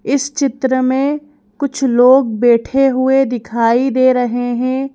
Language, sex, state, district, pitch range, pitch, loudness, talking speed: Hindi, female, Madhya Pradesh, Bhopal, 245-275 Hz, 260 Hz, -14 LUFS, 135 wpm